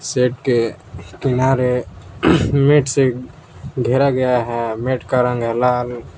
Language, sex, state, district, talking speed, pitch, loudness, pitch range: Hindi, male, Jharkhand, Palamu, 125 wpm, 125 Hz, -17 LUFS, 115-130 Hz